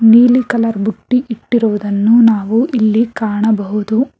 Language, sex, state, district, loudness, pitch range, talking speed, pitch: Kannada, female, Karnataka, Bangalore, -13 LUFS, 215-235 Hz, 100 wpm, 225 Hz